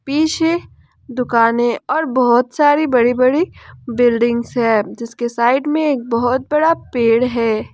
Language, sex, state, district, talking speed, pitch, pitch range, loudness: Hindi, female, Jharkhand, Ranchi, 130 wpm, 250 Hz, 235-295 Hz, -16 LUFS